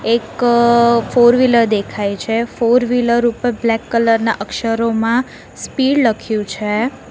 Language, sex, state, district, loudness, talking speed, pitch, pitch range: Gujarati, female, Gujarat, Valsad, -15 LUFS, 120 wpm, 230 Hz, 225-240 Hz